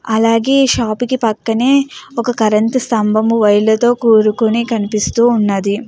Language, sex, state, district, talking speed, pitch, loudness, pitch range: Telugu, female, Andhra Pradesh, Guntur, 140 wpm, 225 Hz, -13 LUFS, 215-240 Hz